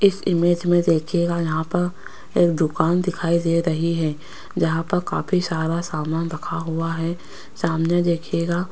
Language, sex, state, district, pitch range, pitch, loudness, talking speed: Hindi, female, Rajasthan, Jaipur, 165-175 Hz, 170 Hz, -22 LUFS, 160 wpm